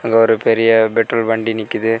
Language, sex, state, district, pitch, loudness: Tamil, male, Tamil Nadu, Kanyakumari, 115 Hz, -15 LUFS